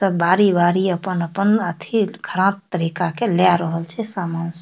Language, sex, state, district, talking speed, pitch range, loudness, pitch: Maithili, female, Bihar, Darbhanga, 170 wpm, 170-195 Hz, -19 LUFS, 180 Hz